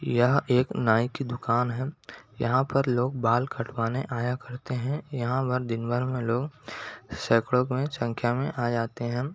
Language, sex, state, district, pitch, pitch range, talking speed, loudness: Hindi, male, Chhattisgarh, Rajnandgaon, 125 Hz, 120-130 Hz, 175 wpm, -27 LUFS